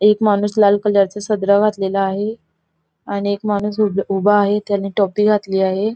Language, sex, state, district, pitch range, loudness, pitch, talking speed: Marathi, female, Goa, North and South Goa, 200-210 Hz, -17 LUFS, 205 Hz, 180 wpm